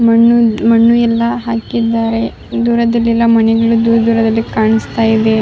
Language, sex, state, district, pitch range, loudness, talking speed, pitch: Kannada, female, Karnataka, Raichur, 225-235 Hz, -12 LUFS, 120 wpm, 230 Hz